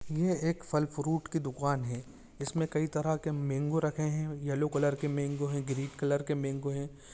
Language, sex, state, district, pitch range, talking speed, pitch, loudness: Hindi, male, Uttarakhand, Uttarkashi, 140-155 Hz, 200 wpm, 145 Hz, -33 LUFS